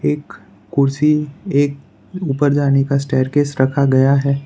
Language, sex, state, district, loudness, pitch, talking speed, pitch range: Hindi, male, Gujarat, Valsad, -16 LUFS, 140 Hz, 135 wpm, 135-145 Hz